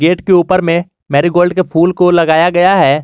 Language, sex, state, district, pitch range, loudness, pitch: Hindi, male, Jharkhand, Garhwa, 170-180 Hz, -11 LUFS, 175 Hz